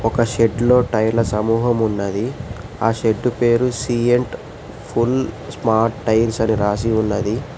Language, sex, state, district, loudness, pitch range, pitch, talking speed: Telugu, male, Telangana, Hyderabad, -18 LUFS, 110-120 Hz, 115 Hz, 120 wpm